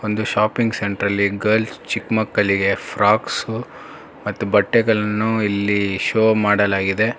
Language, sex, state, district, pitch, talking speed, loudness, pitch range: Kannada, male, Karnataka, Bangalore, 105 Hz, 100 wpm, -19 LUFS, 100-110 Hz